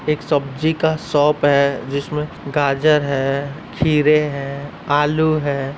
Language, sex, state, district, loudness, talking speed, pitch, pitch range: Hindi, male, Uttar Pradesh, Etah, -18 LUFS, 125 wpm, 145 Hz, 140-150 Hz